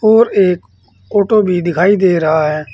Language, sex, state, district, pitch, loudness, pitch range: Hindi, male, Uttar Pradesh, Saharanpur, 180 Hz, -13 LUFS, 155-205 Hz